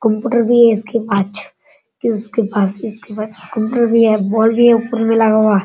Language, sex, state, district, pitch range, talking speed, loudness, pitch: Hindi, male, Bihar, Sitamarhi, 210-230 Hz, 215 wpm, -14 LUFS, 225 Hz